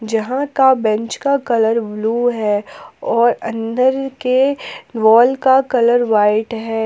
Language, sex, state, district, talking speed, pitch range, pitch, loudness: Hindi, female, Jharkhand, Palamu, 130 wpm, 225-260 Hz, 235 Hz, -15 LUFS